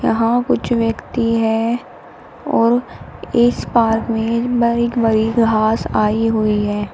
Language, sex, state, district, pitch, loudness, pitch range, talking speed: Hindi, female, Uttar Pradesh, Shamli, 230 Hz, -17 LUFS, 220-235 Hz, 120 wpm